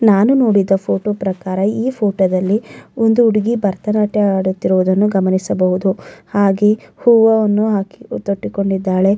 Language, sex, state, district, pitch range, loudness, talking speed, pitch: Kannada, female, Karnataka, Mysore, 190-215 Hz, -15 LUFS, 105 wpm, 200 Hz